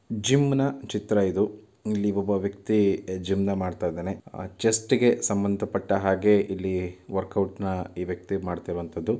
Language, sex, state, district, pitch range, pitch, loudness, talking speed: Kannada, male, Karnataka, Mysore, 95-105 Hz, 100 Hz, -26 LUFS, 135 wpm